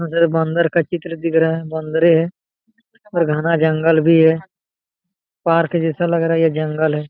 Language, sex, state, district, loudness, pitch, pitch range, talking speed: Hindi, male, Jharkhand, Jamtara, -17 LUFS, 165 Hz, 160-170 Hz, 170 wpm